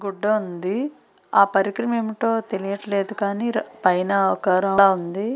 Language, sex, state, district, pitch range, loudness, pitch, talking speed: Telugu, female, Andhra Pradesh, Srikakulam, 195-220 Hz, -21 LUFS, 200 Hz, 110 wpm